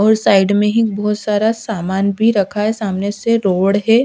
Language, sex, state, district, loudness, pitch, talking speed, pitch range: Hindi, female, Odisha, Sambalpur, -15 LUFS, 210 Hz, 220 wpm, 200-220 Hz